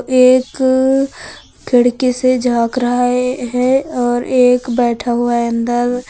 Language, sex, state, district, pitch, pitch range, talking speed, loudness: Hindi, female, Uttar Pradesh, Lucknow, 250 Hz, 240-255 Hz, 130 wpm, -14 LUFS